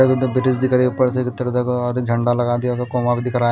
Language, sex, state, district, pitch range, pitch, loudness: Hindi, male, Odisha, Malkangiri, 120-130 Hz, 125 Hz, -19 LUFS